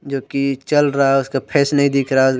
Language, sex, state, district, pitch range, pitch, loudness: Hindi, male, Jharkhand, Deoghar, 135-140 Hz, 140 Hz, -17 LUFS